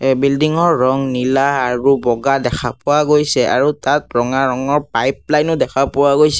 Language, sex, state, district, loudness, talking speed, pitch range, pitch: Assamese, male, Assam, Sonitpur, -15 LUFS, 190 wpm, 130-150 Hz, 140 Hz